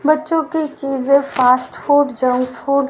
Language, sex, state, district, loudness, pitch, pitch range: Hindi, female, Haryana, Rohtak, -16 LUFS, 280 Hz, 255-300 Hz